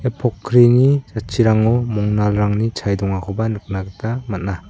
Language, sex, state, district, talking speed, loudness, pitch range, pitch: Garo, male, Meghalaya, South Garo Hills, 115 wpm, -18 LUFS, 100-120 Hz, 110 Hz